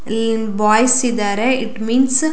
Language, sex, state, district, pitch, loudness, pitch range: Kannada, female, Karnataka, Shimoga, 230 Hz, -16 LUFS, 220-255 Hz